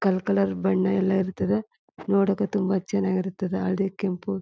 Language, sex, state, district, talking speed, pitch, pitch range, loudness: Kannada, female, Karnataka, Chamarajanagar, 150 wpm, 190 Hz, 185-200 Hz, -25 LUFS